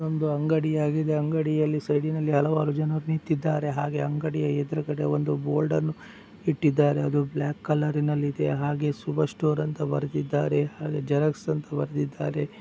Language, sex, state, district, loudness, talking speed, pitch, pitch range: Kannada, male, Karnataka, Dakshina Kannada, -26 LUFS, 145 wpm, 150 Hz, 145-155 Hz